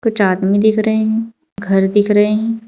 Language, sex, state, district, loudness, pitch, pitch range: Hindi, female, Uttar Pradesh, Saharanpur, -14 LUFS, 215 Hz, 200-220 Hz